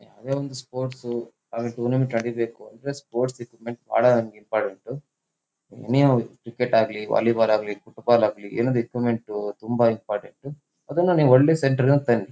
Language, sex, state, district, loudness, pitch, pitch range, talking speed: Kannada, male, Karnataka, Shimoga, -23 LUFS, 120 Hz, 115-130 Hz, 140 wpm